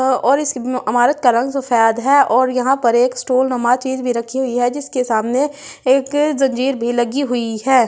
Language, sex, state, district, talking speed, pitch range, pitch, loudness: Hindi, female, Delhi, New Delhi, 200 wpm, 245-270 Hz, 255 Hz, -16 LUFS